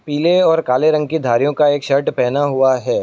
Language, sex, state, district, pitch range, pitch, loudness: Hindi, male, Uttar Pradesh, Etah, 135-155 Hz, 145 Hz, -15 LUFS